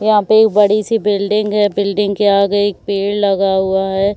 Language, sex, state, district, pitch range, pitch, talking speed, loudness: Hindi, female, Bihar, Saharsa, 200-210 Hz, 205 Hz, 215 wpm, -14 LUFS